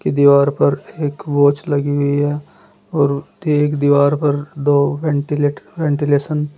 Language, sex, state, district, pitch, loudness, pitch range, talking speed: Hindi, male, Uttar Pradesh, Saharanpur, 145 Hz, -16 LUFS, 140-150 Hz, 135 wpm